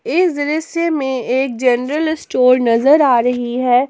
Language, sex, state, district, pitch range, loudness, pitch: Hindi, female, Jharkhand, Palamu, 250-305 Hz, -15 LUFS, 260 Hz